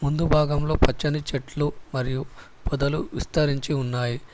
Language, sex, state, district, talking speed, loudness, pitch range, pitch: Telugu, male, Telangana, Hyderabad, 110 wpm, -25 LUFS, 135-150 Hz, 145 Hz